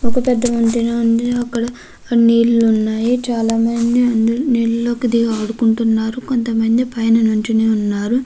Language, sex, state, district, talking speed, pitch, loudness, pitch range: Telugu, female, Andhra Pradesh, Krishna, 115 wpm, 230 Hz, -16 LUFS, 225-240 Hz